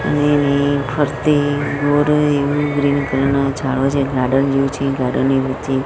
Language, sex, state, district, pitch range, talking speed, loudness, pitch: Gujarati, female, Gujarat, Gandhinagar, 135-145 Hz, 145 wpm, -17 LUFS, 140 Hz